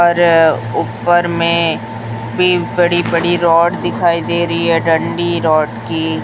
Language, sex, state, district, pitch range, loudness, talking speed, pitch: Hindi, female, Chhattisgarh, Raipur, 160-175 Hz, -14 LUFS, 135 wpm, 170 Hz